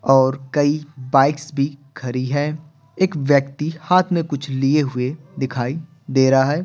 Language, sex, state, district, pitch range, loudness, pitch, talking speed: Hindi, male, Bihar, Patna, 135-150 Hz, -20 LUFS, 140 Hz, 155 wpm